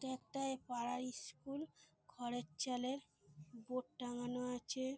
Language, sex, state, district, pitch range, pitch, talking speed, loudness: Bengali, female, West Bengal, Dakshin Dinajpur, 245-260 Hz, 250 Hz, 110 wpm, -45 LUFS